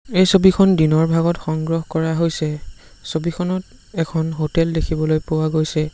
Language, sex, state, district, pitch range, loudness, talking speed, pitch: Assamese, male, Assam, Sonitpur, 155-170 Hz, -19 LUFS, 130 wpm, 160 Hz